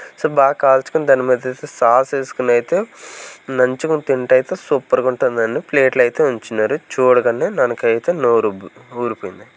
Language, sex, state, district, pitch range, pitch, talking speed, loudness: Telugu, male, Andhra Pradesh, Sri Satya Sai, 125-185 Hz, 135 Hz, 140 wpm, -16 LUFS